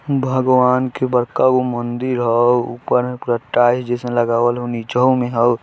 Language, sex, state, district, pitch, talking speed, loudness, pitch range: Hindi, male, Bihar, Vaishali, 125 Hz, 170 wpm, -17 LUFS, 120-130 Hz